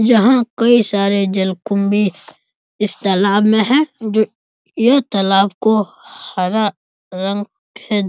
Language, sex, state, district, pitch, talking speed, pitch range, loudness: Hindi, male, Bihar, East Champaran, 205 Hz, 120 wpm, 195-225 Hz, -15 LUFS